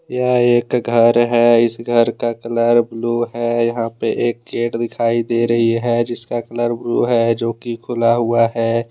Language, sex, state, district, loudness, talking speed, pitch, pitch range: Hindi, male, Jharkhand, Deoghar, -17 LUFS, 175 wpm, 115 Hz, 115-120 Hz